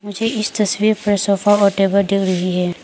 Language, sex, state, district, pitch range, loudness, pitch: Hindi, female, Arunachal Pradesh, Papum Pare, 195-210 Hz, -16 LUFS, 200 Hz